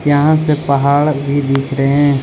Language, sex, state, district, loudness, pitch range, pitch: Hindi, male, Arunachal Pradesh, Lower Dibang Valley, -14 LUFS, 140-145 Hz, 140 Hz